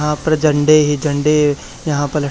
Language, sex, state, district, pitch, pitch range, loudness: Hindi, male, Haryana, Charkhi Dadri, 150 Hz, 145-155 Hz, -15 LUFS